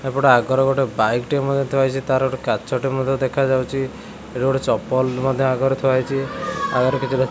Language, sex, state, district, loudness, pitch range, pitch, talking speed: Odia, male, Odisha, Khordha, -20 LUFS, 130-135 Hz, 130 Hz, 165 wpm